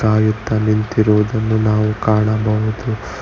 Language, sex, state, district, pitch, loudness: Kannada, male, Karnataka, Bangalore, 110 Hz, -16 LUFS